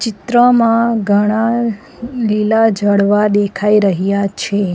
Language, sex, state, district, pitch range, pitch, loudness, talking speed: Gujarati, female, Gujarat, Valsad, 205-230 Hz, 210 Hz, -13 LUFS, 90 wpm